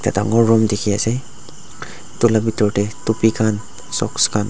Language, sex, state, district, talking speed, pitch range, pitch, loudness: Nagamese, male, Nagaland, Dimapur, 145 wpm, 105-115 Hz, 110 Hz, -18 LUFS